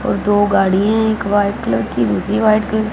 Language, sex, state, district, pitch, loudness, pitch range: Hindi, female, Punjab, Fazilka, 205 Hz, -15 LUFS, 195-215 Hz